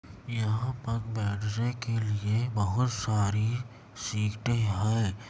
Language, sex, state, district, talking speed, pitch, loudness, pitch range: Hindi, male, Chhattisgarh, Kabirdham, 100 wpm, 110 Hz, -30 LUFS, 105-120 Hz